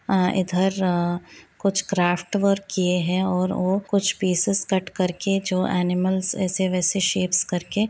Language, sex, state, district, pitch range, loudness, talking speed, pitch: Hindi, female, Bihar, East Champaran, 180-195 Hz, -22 LUFS, 175 wpm, 185 Hz